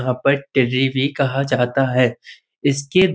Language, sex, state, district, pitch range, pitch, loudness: Hindi, female, Uttar Pradesh, Budaun, 130-140 Hz, 135 Hz, -19 LUFS